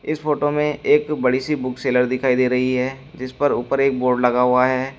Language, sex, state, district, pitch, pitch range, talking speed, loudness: Hindi, male, Uttar Pradesh, Shamli, 130 Hz, 125-145 Hz, 230 wpm, -19 LUFS